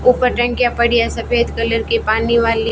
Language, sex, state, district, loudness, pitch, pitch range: Hindi, female, Rajasthan, Bikaner, -16 LUFS, 235 Hz, 230-240 Hz